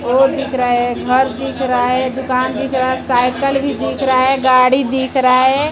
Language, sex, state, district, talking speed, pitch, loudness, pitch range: Hindi, female, Chhattisgarh, Raipur, 210 wpm, 260 Hz, -15 LUFS, 255-270 Hz